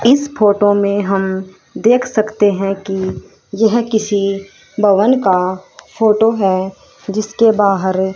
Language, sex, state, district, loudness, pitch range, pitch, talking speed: Hindi, female, Haryana, Rohtak, -15 LUFS, 195-220 Hz, 205 Hz, 120 wpm